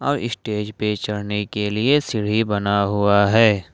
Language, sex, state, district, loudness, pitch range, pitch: Hindi, male, Jharkhand, Ranchi, -20 LUFS, 105-110 Hz, 105 Hz